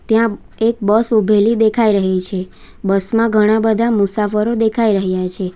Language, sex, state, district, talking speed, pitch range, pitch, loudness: Gujarati, female, Gujarat, Valsad, 150 wpm, 195-225 Hz, 215 Hz, -15 LUFS